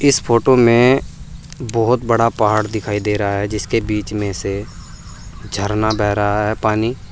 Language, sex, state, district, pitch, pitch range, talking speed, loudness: Hindi, male, Uttar Pradesh, Saharanpur, 105 Hz, 105-115 Hz, 160 wpm, -17 LUFS